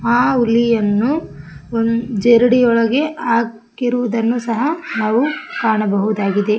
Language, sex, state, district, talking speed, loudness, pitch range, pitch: Kannada, female, Karnataka, Koppal, 75 wpm, -16 LUFS, 225-245 Hz, 230 Hz